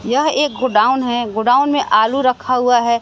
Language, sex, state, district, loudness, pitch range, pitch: Hindi, female, Bihar, West Champaran, -15 LUFS, 235-265 Hz, 250 Hz